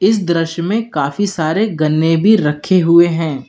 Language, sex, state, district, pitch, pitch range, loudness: Hindi, male, Uttar Pradesh, Lalitpur, 170 Hz, 155-200 Hz, -14 LUFS